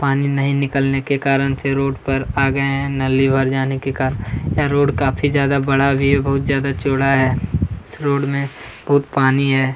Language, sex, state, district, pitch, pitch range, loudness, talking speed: Hindi, male, Chhattisgarh, Kabirdham, 135 Hz, 135-140 Hz, -18 LUFS, 195 wpm